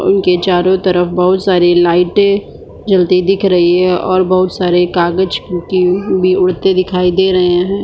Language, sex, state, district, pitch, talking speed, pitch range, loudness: Hindi, female, Bihar, Supaul, 185 Hz, 160 wpm, 180-190 Hz, -12 LUFS